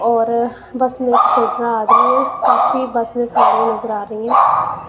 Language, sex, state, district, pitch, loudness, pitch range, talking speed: Hindi, female, Punjab, Kapurthala, 235 Hz, -15 LUFS, 225-245 Hz, 195 wpm